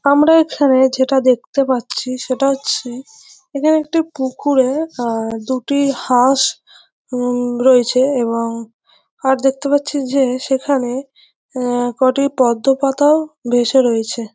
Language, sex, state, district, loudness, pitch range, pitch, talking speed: Bengali, female, West Bengal, North 24 Parganas, -16 LUFS, 245-280 Hz, 265 Hz, 115 wpm